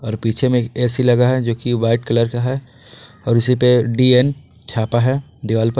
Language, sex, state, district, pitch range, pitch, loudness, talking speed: Hindi, male, Jharkhand, Ranchi, 115-130 Hz, 125 Hz, -17 LUFS, 215 wpm